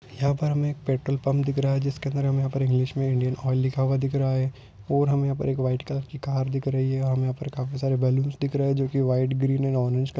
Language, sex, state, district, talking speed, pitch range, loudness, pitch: Hindi, male, Maharashtra, Solapur, 290 wpm, 130-140 Hz, -25 LUFS, 135 Hz